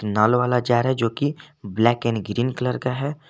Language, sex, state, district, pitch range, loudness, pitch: Hindi, male, Jharkhand, Garhwa, 115-130 Hz, -22 LUFS, 125 Hz